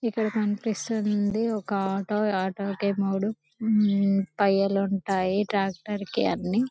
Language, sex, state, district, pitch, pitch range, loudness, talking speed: Telugu, female, Telangana, Karimnagar, 200 Hz, 195-215 Hz, -26 LUFS, 105 wpm